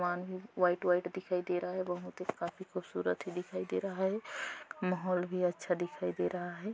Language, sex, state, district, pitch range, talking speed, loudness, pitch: Hindi, female, Chhattisgarh, Sarguja, 175-185 Hz, 230 wpm, -36 LUFS, 180 Hz